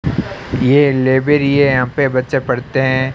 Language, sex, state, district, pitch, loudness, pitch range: Hindi, male, Rajasthan, Bikaner, 130 Hz, -14 LUFS, 130-140 Hz